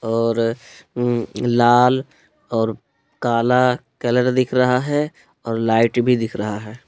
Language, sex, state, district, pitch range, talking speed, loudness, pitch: Hindi, male, Jharkhand, Palamu, 115-125 Hz, 120 wpm, -19 LUFS, 120 Hz